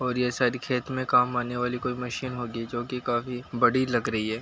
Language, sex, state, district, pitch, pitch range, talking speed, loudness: Hindi, male, Bihar, Bhagalpur, 125 Hz, 120-125 Hz, 245 wpm, -27 LUFS